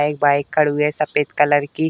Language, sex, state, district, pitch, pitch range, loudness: Hindi, male, Uttar Pradesh, Deoria, 150 Hz, 145-155 Hz, -18 LUFS